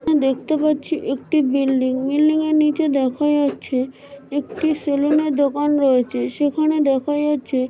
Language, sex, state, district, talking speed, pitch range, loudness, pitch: Bengali, female, West Bengal, Dakshin Dinajpur, 130 wpm, 270-305 Hz, -19 LUFS, 290 Hz